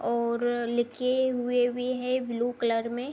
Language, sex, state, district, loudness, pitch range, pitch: Hindi, female, Uttar Pradesh, Budaun, -28 LUFS, 235-250 Hz, 245 Hz